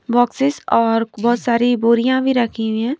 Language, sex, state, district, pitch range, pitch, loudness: Hindi, female, Punjab, Pathankot, 230-255 Hz, 240 Hz, -17 LUFS